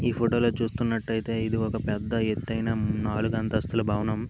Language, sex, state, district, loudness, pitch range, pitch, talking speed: Telugu, male, Telangana, Nalgonda, -27 LUFS, 110-115 Hz, 110 Hz, 140 wpm